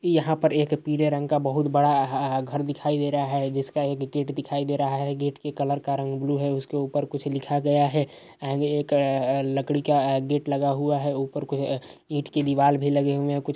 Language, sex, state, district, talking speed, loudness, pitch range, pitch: Hindi, male, Uttar Pradesh, Hamirpur, 235 wpm, -25 LUFS, 140-145 Hz, 145 Hz